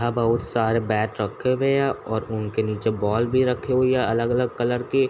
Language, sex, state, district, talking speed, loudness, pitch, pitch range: Hindi, male, Uttar Pradesh, Etah, 225 wpm, -23 LUFS, 120 Hz, 110-130 Hz